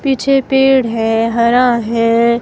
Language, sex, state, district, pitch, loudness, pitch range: Hindi, female, Himachal Pradesh, Shimla, 235 Hz, -13 LUFS, 230-265 Hz